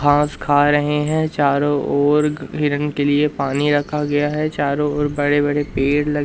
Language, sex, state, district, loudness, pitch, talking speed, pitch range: Hindi, male, Madhya Pradesh, Umaria, -18 LUFS, 145 Hz, 180 wpm, 145-150 Hz